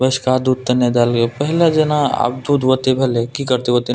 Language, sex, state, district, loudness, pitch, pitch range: Maithili, male, Bihar, Purnia, -16 LUFS, 130 Hz, 120-140 Hz